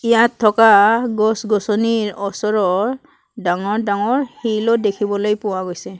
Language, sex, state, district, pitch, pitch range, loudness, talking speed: Assamese, female, Assam, Kamrup Metropolitan, 215 Hz, 205-230 Hz, -17 LUFS, 100 wpm